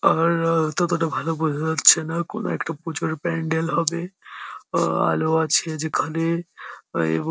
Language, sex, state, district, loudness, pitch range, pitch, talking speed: Bengali, male, West Bengal, Jhargram, -22 LUFS, 160-170 Hz, 165 Hz, 140 wpm